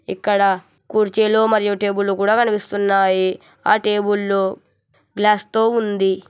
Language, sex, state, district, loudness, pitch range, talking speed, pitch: Telugu, male, Telangana, Hyderabad, -18 LUFS, 195-215 Hz, 115 wpm, 205 Hz